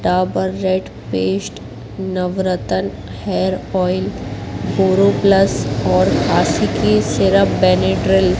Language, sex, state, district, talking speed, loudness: Hindi, female, Madhya Pradesh, Katni, 100 wpm, -17 LUFS